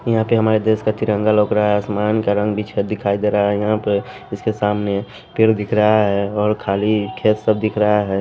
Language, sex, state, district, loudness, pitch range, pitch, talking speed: Hindi, male, Punjab, Pathankot, -18 LUFS, 105-110 Hz, 105 Hz, 235 wpm